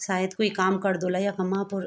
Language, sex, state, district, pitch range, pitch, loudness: Garhwali, female, Uttarakhand, Tehri Garhwal, 185-195 Hz, 190 Hz, -26 LUFS